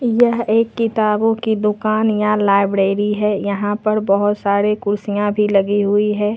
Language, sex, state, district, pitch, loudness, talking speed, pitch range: Hindi, female, Jharkhand, Ranchi, 210 Hz, -17 LUFS, 160 wpm, 205-215 Hz